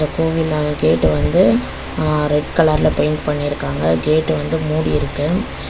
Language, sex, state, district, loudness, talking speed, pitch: Tamil, female, Tamil Nadu, Chennai, -17 LUFS, 135 wpm, 150 Hz